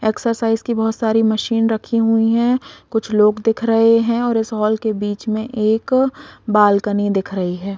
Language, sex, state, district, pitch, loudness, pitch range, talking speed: Hindi, female, Bihar, East Champaran, 225 Hz, -17 LUFS, 215-230 Hz, 185 wpm